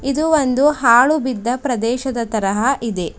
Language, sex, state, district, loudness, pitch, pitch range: Kannada, female, Karnataka, Bidar, -17 LUFS, 250 Hz, 230-275 Hz